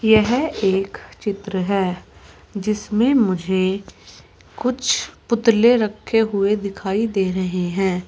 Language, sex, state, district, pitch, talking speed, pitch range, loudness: Hindi, female, Uttar Pradesh, Saharanpur, 205 Hz, 105 wpm, 190-225 Hz, -20 LUFS